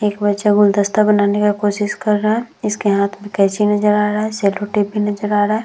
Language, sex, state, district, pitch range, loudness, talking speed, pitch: Hindi, female, Bihar, Vaishali, 205-210 Hz, -16 LUFS, 245 wpm, 210 Hz